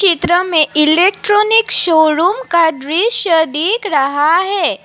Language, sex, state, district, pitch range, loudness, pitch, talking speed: Hindi, female, Assam, Sonitpur, 315-395 Hz, -12 LUFS, 340 Hz, 100 wpm